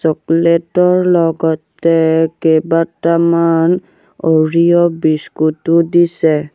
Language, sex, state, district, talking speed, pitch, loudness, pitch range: Assamese, male, Assam, Sonitpur, 65 wpm, 165 Hz, -13 LUFS, 160-170 Hz